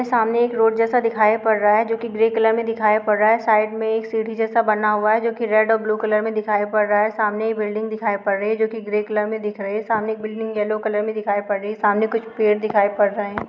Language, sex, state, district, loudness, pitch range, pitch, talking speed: Hindi, female, Bihar, Muzaffarpur, -20 LUFS, 210-225 Hz, 215 Hz, 300 wpm